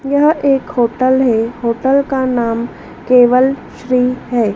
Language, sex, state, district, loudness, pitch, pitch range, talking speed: Hindi, female, Madhya Pradesh, Dhar, -14 LUFS, 250 Hz, 240-270 Hz, 130 wpm